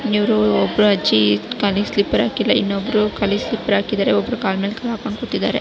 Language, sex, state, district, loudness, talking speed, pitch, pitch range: Kannada, female, Karnataka, Raichur, -18 LUFS, 160 wpm, 210 Hz, 200-220 Hz